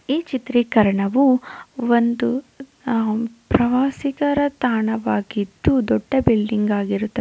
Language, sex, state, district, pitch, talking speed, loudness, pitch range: Kannada, female, Karnataka, Dakshina Kannada, 240 Hz, 65 wpm, -20 LUFS, 220-265 Hz